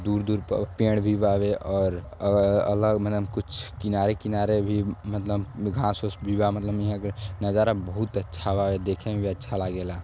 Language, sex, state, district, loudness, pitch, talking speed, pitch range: Bhojpuri, male, Uttar Pradesh, Deoria, -26 LUFS, 105 Hz, 180 wpm, 100-105 Hz